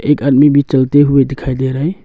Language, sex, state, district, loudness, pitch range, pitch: Hindi, male, Arunachal Pradesh, Longding, -12 LUFS, 135-145 Hz, 140 Hz